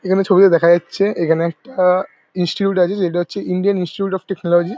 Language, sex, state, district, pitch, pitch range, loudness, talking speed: Bengali, male, West Bengal, Paschim Medinipur, 185 Hz, 175-195 Hz, -16 LUFS, 175 wpm